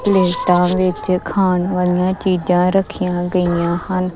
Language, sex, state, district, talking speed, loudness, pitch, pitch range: Punjabi, female, Punjab, Kapurthala, 115 wpm, -17 LUFS, 180 Hz, 180-185 Hz